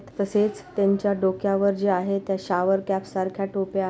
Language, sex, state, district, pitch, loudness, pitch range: Marathi, female, Maharashtra, Pune, 195 Hz, -24 LUFS, 190-200 Hz